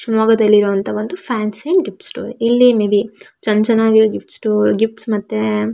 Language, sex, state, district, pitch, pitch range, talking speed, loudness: Kannada, female, Karnataka, Shimoga, 220 Hz, 215-225 Hz, 145 wpm, -15 LUFS